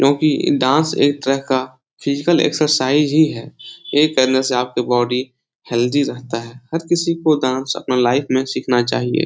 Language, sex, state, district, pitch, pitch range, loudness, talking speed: Hindi, male, Bihar, Lakhisarai, 130 Hz, 125-150 Hz, -17 LUFS, 175 wpm